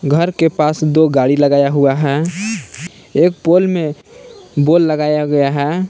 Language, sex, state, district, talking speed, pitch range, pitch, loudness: Hindi, male, Jharkhand, Palamu, 150 wpm, 145-175 Hz, 155 Hz, -14 LUFS